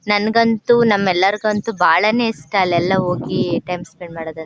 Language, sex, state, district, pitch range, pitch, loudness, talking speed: Kannada, female, Karnataka, Chamarajanagar, 175-215 Hz, 195 Hz, -17 LUFS, 135 wpm